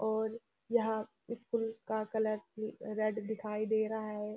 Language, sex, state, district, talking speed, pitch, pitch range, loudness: Hindi, female, Uttarakhand, Uttarkashi, 150 wpm, 220 Hz, 215-220 Hz, -36 LUFS